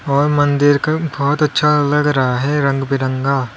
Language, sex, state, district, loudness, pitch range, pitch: Hindi, male, Uttar Pradesh, Lalitpur, -15 LUFS, 135-150 Hz, 145 Hz